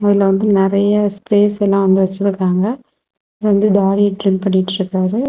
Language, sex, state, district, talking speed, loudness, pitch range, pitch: Tamil, female, Tamil Nadu, Kanyakumari, 100 wpm, -15 LUFS, 195-205 Hz, 200 Hz